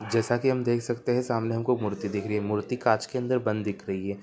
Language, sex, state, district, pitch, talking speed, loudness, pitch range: Hindi, male, Bihar, Muzaffarpur, 115 Hz, 285 wpm, -27 LUFS, 105-125 Hz